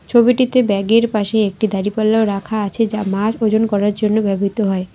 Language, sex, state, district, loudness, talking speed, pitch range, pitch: Bengali, female, West Bengal, Alipurduar, -16 LUFS, 170 wpm, 200-225 Hz, 215 Hz